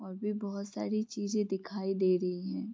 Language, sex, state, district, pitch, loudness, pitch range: Hindi, female, Bihar, Vaishali, 200 Hz, -34 LUFS, 190-210 Hz